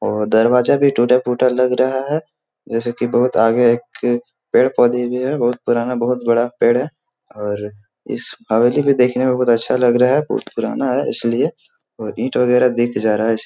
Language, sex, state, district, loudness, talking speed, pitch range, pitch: Hindi, male, Bihar, Jahanabad, -17 LUFS, 200 wpm, 115-125 Hz, 120 Hz